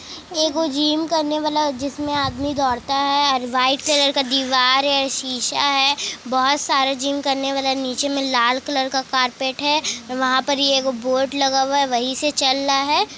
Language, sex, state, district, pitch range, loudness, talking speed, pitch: Hindi, female, Bihar, Kishanganj, 260-285 Hz, -19 LUFS, 180 wpm, 275 Hz